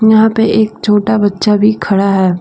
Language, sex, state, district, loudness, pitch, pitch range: Hindi, female, Jharkhand, Deoghar, -11 LUFS, 210 Hz, 200-220 Hz